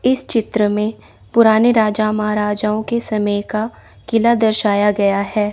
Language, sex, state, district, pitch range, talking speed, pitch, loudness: Hindi, female, Chandigarh, Chandigarh, 210-225 Hz, 140 wpm, 215 Hz, -16 LUFS